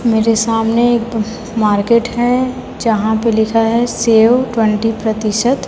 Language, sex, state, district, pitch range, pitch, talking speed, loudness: Hindi, female, Chhattisgarh, Raipur, 220-235 Hz, 225 Hz, 125 wpm, -14 LUFS